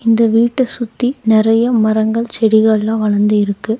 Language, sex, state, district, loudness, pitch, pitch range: Tamil, female, Tamil Nadu, Nilgiris, -14 LUFS, 225 Hz, 220-230 Hz